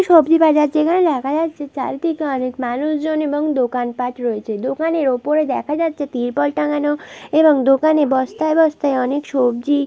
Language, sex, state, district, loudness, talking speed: Bengali, female, West Bengal, Malda, -18 LUFS, 140 wpm